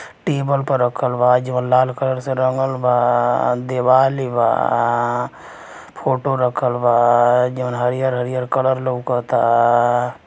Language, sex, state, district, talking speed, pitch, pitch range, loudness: Bhojpuri, male, Uttar Pradesh, Gorakhpur, 110 wpm, 125 Hz, 120-130 Hz, -17 LUFS